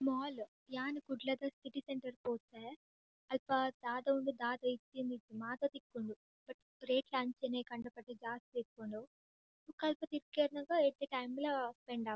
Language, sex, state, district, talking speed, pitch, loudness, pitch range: Tulu, female, Karnataka, Dakshina Kannada, 145 wpm, 260 Hz, -40 LUFS, 240-275 Hz